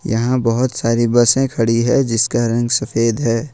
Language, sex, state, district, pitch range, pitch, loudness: Hindi, male, Jharkhand, Ranchi, 115-130 Hz, 120 Hz, -16 LUFS